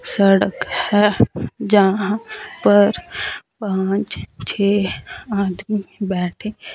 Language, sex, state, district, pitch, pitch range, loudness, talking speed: Hindi, female, Punjab, Fazilka, 200 Hz, 195-210 Hz, -19 LUFS, 70 wpm